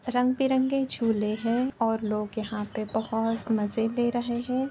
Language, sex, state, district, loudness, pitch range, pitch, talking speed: Hindi, female, Uttar Pradesh, Etah, -27 LUFS, 220-250 Hz, 230 Hz, 165 wpm